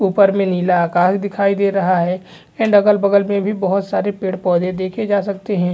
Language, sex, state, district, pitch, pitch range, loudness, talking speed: Hindi, male, Bihar, Vaishali, 195 Hz, 185-200 Hz, -16 LUFS, 190 wpm